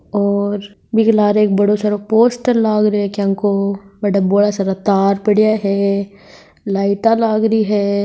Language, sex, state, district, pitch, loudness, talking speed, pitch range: Hindi, female, Rajasthan, Nagaur, 205 Hz, -15 LUFS, 155 wpm, 200-215 Hz